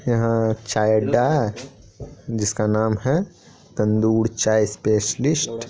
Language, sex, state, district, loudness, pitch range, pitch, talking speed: Hindi, male, Bihar, Purnia, -21 LUFS, 110-130 Hz, 110 Hz, 115 wpm